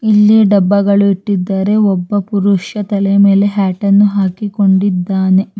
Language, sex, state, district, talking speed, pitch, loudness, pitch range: Kannada, female, Karnataka, Raichur, 105 wpm, 200 Hz, -12 LUFS, 195-205 Hz